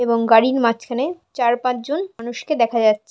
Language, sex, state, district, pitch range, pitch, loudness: Bengali, female, West Bengal, Paschim Medinipur, 230-265 Hz, 240 Hz, -19 LUFS